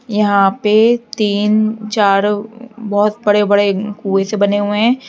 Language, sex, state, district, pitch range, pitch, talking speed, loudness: Hindi, female, Uttar Pradesh, Lalitpur, 205-220 Hz, 210 Hz, 140 wpm, -14 LUFS